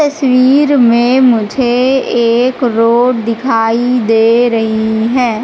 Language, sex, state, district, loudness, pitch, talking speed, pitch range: Hindi, female, Madhya Pradesh, Katni, -11 LUFS, 240 Hz, 100 wpm, 230-255 Hz